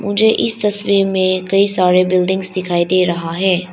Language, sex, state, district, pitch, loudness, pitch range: Hindi, female, Arunachal Pradesh, Lower Dibang Valley, 185 Hz, -15 LUFS, 180-195 Hz